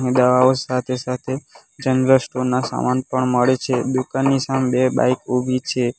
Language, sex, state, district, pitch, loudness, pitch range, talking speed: Gujarati, male, Gujarat, Valsad, 130 Hz, -19 LUFS, 125-130 Hz, 160 wpm